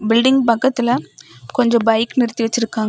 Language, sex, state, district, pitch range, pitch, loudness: Tamil, female, Tamil Nadu, Kanyakumari, 220-245 Hz, 235 Hz, -17 LUFS